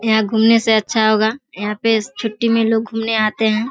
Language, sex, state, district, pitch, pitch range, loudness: Hindi, female, Bihar, Kishanganj, 220 Hz, 215-225 Hz, -16 LUFS